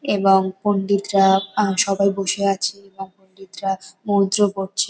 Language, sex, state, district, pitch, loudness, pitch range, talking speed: Bengali, female, West Bengal, Kolkata, 195 Hz, -19 LUFS, 195-200 Hz, 120 wpm